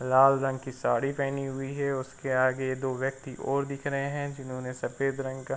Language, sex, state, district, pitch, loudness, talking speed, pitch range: Hindi, male, Uttar Pradesh, Varanasi, 135 Hz, -29 LUFS, 215 wpm, 130-140 Hz